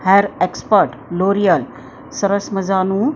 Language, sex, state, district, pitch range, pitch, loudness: Gujarati, female, Maharashtra, Mumbai Suburban, 190-205 Hz, 200 Hz, -17 LUFS